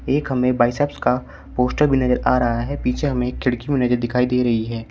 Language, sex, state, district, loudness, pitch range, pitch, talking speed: Hindi, male, Uttar Pradesh, Shamli, -20 LUFS, 120-130 Hz, 125 Hz, 230 wpm